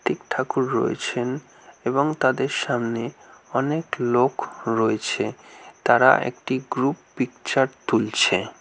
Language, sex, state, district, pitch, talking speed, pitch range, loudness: Bengali, male, West Bengal, North 24 Parganas, 130 Hz, 95 wpm, 120-135 Hz, -23 LUFS